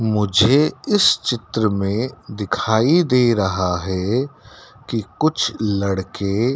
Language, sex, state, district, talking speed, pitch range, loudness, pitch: Hindi, male, Madhya Pradesh, Dhar, 100 wpm, 100-130 Hz, -19 LUFS, 110 Hz